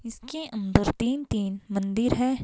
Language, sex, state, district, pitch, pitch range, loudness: Hindi, female, Himachal Pradesh, Shimla, 230 Hz, 200-255 Hz, -27 LUFS